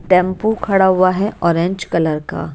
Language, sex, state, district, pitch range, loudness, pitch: Hindi, female, Haryana, Jhajjar, 170-195 Hz, -16 LUFS, 185 Hz